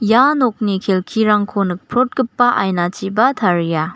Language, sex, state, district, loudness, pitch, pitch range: Garo, female, Meghalaya, West Garo Hills, -16 LUFS, 210 Hz, 185-245 Hz